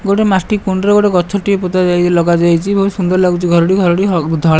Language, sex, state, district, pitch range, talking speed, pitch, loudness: Odia, male, Odisha, Malkangiri, 175-195 Hz, 180 wpm, 185 Hz, -12 LUFS